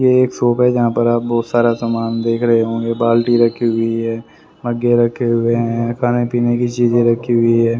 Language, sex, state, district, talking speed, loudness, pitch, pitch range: Hindi, male, Haryana, Rohtak, 215 wpm, -15 LUFS, 120 Hz, 115-120 Hz